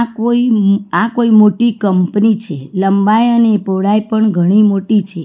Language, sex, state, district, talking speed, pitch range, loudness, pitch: Gujarati, female, Gujarat, Valsad, 160 wpm, 195-225 Hz, -12 LUFS, 210 Hz